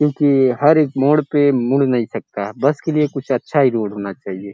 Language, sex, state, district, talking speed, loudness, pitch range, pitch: Hindi, male, Uttar Pradesh, Gorakhpur, 225 wpm, -17 LUFS, 115-145 Hz, 135 Hz